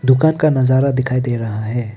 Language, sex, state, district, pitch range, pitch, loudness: Hindi, male, Arunachal Pradesh, Papum Pare, 120-135 Hz, 130 Hz, -16 LUFS